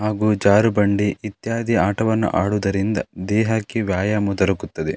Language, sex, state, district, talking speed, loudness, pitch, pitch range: Kannada, male, Karnataka, Dakshina Kannada, 95 wpm, -20 LUFS, 105 Hz, 100-110 Hz